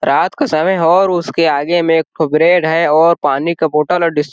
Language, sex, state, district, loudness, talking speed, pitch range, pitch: Hindi, male, Chhattisgarh, Sarguja, -13 LUFS, 265 wpm, 155-170 Hz, 165 Hz